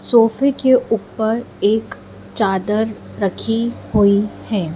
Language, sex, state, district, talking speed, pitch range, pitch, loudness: Hindi, female, Madhya Pradesh, Dhar, 100 wpm, 205-230 Hz, 220 Hz, -18 LUFS